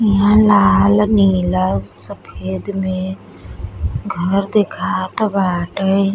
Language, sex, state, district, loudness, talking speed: Bhojpuri, female, Uttar Pradesh, Deoria, -16 LUFS, 80 wpm